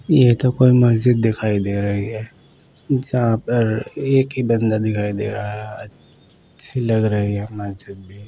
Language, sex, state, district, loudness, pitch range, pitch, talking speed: Hindi, male, Bihar, Patna, -19 LUFS, 105-125 Hz, 110 Hz, 165 wpm